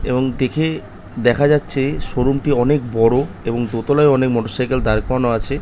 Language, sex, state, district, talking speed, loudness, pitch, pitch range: Bengali, male, West Bengal, North 24 Parganas, 170 wpm, -17 LUFS, 130 Hz, 115-140 Hz